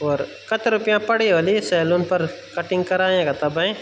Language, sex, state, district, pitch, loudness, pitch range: Garhwali, male, Uttarakhand, Tehri Garhwal, 185 Hz, -20 LUFS, 170-210 Hz